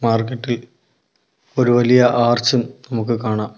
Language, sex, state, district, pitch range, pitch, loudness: Malayalam, male, Kerala, Kollam, 115-125 Hz, 120 Hz, -17 LUFS